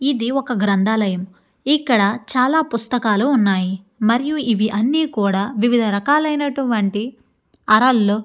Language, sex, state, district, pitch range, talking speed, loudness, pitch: Telugu, female, Andhra Pradesh, Chittoor, 205-265 Hz, 110 wpm, -18 LUFS, 230 Hz